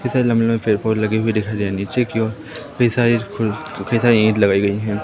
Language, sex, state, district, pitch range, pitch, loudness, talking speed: Hindi, male, Madhya Pradesh, Katni, 105-120 Hz, 110 Hz, -18 LUFS, 285 wpm